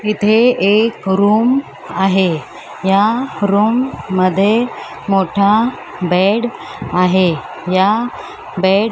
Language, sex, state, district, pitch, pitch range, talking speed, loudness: Marathi, male, Maharashtra, Mumbai Suburban, 200 Hz, 185-220 Hz, 85 wpm, -15 LUFS